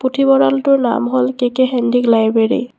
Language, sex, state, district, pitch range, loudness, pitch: Assamese, female, Assam, Kamrup Metropolitan, 220-260 Hz, -14 LUFS, 245 Hz